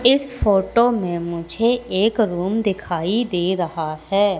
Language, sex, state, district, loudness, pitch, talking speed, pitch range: Hindi, female, Madhya Pradesh, Katni, -20 LUFS, 195 Hz, 135 wpm, 175-225 Hz